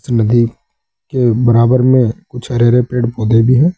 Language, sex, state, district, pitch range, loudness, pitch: Hindi, male, Uttar Pradesh, Saharanpur, 115-125 Hz, -13 LUFS, 120 Hz